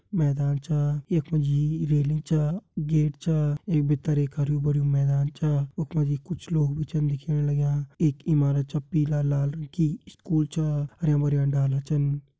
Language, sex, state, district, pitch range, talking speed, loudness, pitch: Hindi, male, Uttarakhand, Tehri Garhwal, 145-155 Hz, 175 wpm, -26 LUFS, 150 Hz